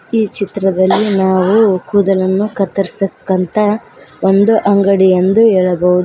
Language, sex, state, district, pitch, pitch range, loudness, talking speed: Kannada, female, Karnataka, Koppal, 195 Hz, 185-205 Hz, -13 LUFS, 90 wpm